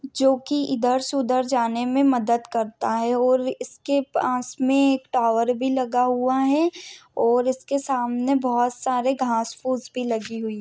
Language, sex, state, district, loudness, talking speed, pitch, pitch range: Hindi, female, Maharashtra, Pune, -22 LUFS, 180 wpm, 255 Hz, 240-270 Hz